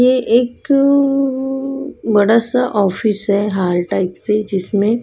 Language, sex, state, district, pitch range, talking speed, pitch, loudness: Hindi, female, Chhattisgarh, Raipur, 200-265 Hz, 120 wpm, 225 Hz, -16 LUFS